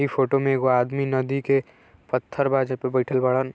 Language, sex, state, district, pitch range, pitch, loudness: Bhojpuri, male, Uttar Pradesh, Gorakhpur, 130-135 Hz, 130 Hz, -23 LUFS